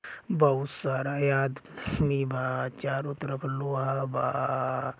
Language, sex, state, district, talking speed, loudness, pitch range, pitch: Bhojpuri, male, Uttar Pradesh, Gorakhpur, 110 wpm, -29 LUFS, 135-140 Hz, 135 Hz